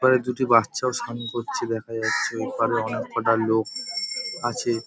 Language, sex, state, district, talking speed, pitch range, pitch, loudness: Bengali, male, West Bengal, Paschim Medinipur, 150 wpm, 115-130 Hz, 120 Hz, -24 LUFS